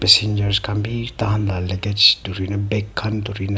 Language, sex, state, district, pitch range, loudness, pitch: Nagamese, female, Nagaland, Kohima, 100-105 Hz, -19 LUFS, 100 Hz